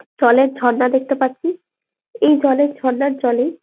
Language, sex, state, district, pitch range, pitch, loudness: Bengali, female, West Bengal, Jalpaiguri, 255-290 Hz, 265 Hz, -17 LUFS